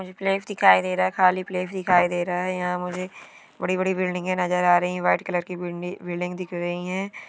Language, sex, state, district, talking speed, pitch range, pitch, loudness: Hindi, female, Bihar, Sitamarhi, 230 wpm, 175-185 Hz, 180 Hz, -24 LUFS